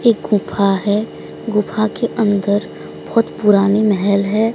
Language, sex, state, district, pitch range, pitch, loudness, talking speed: Hindi, female, Odisha, Sambalpur, 200-215 Hz, 205 Hz, -16 LUFS, 130 wpm